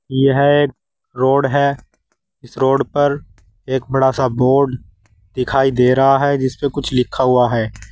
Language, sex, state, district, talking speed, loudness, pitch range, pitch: Hindi, male, Uttar Pradesh, Saharanpur, 150 wpm, -16 LUFS, 125-140 Hz, 130 Hz